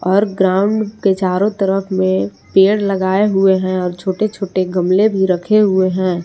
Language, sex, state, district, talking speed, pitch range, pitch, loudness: Hindi, female, Jharkhand, Palamu, 175 wpm, 185-200 Hz, 190 Hz, -15 LUFS